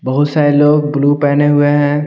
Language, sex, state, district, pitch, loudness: Hindi, male, Bihar, Patna, 145 Hz, -12 LUFS